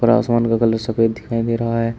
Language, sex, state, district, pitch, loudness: Hindi, male, Uttar Pradesh, Shamli, 115 Hz, -18 LUFS